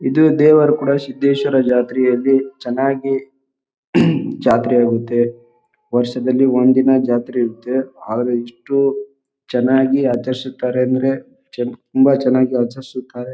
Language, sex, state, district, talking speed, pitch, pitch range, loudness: Kannada, male, Karnataka, Bijapur, 110 wpm, 130 Hz, 125-135 Hz, -16 LUFS